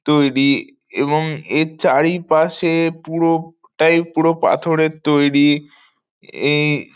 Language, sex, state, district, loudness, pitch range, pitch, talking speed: Bengali, male, West Bengal, North 24 Parganas, -16 LUFS, 145-165 Hz, 155 Hz, 95 wpm